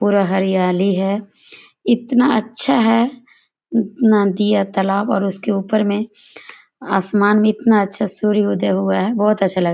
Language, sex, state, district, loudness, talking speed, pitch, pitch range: Hindi, female, Jharkhand, Sahebganj, -16 LUFS, 150 wpm, 210 Hz, 195-225 Hz